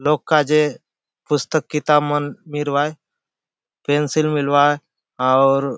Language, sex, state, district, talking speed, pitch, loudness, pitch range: Halbi, male, Chhattisgarh, Bastar, 105 wpm, 150 Hz, -18 LUFS, 145-150 Hz